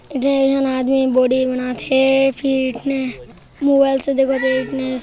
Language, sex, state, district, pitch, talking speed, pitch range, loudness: Hindi, male, Chhattisgarh, Jashpur, 265 Hz, 105 wpm, 260-270 Hz, -16 LUFS